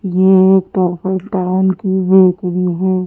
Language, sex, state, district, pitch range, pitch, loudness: Hindi, female, Madhya Pradesh, Bhopal, 185-190 Hz, 185 Hz, -13 LUFS